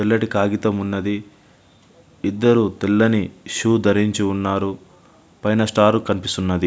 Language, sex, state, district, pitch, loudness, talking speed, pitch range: Telugu, male, Andhra Pradesh, Visakhapatnam, 105 Hz, -19 LUFS, 100 wpm, 100-110 Hz